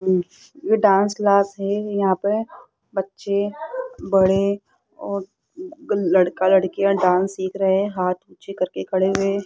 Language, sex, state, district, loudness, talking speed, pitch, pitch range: Hindi, female, Rajasthan, Jaipur, -21 LUFS, 135 wpm, 195 Hz, 190-205 Hz